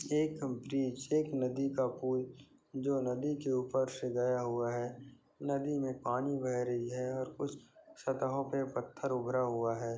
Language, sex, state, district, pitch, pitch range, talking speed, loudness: Hindi, male, Chhattisgarh, Bastar, 130 Hz, 125-140 Hz, 170 wpm, -36 LUFS